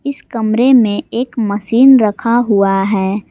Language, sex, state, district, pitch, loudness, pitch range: Hindi, female, Jharkhand, Garhwa, 225 Hz, -13 LUFS, 205-250 Hz